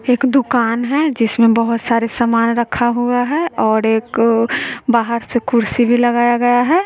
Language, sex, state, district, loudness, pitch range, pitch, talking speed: Hindi, female, Bihar, West Champaran, -15 LUFS, 230-245 Hz, 240 Hz, 165 wpm